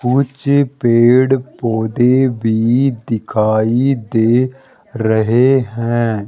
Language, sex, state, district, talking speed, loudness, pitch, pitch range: Hindi, male, Rajasthan, Jaipur, 75 wpm, -14 LUFS, 120 Hz, 115-130 Hz